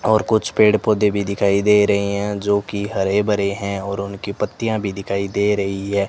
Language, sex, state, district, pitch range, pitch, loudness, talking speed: Hindi, male, Rajasthan, Bikaner, 100-105 Hz, 100 Hz, -19 LUFS, 215 wpm